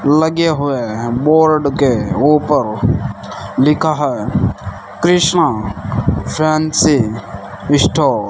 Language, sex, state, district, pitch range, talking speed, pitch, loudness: Hindi, male, Rajasthan, Bikaner, 110-155 Hz, 85 wpm, 140 Hz, -14 LUFS